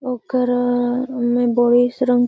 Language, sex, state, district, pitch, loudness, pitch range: Magahi, female, Bihar, Gaya, 245 Hz, -18 LUFS, 245-250 Hz